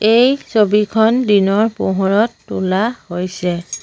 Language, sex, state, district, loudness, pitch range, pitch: Assamese, female, Assam, Sonitpur, -15 LUFS, 190-225 Hz, 210 Hz